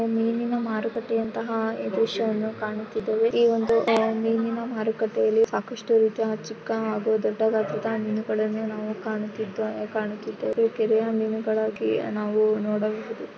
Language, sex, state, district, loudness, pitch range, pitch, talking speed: Kannada, female, Karnataka, Shimoga, -25 LUFS, 215-225 Hz, 220 Hz, 110 wpm